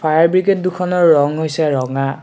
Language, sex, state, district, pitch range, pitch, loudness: Assamese, male, Assam, Kamrup Metropolitan, 145-180 Hz, 160 Hz, -15 LUFS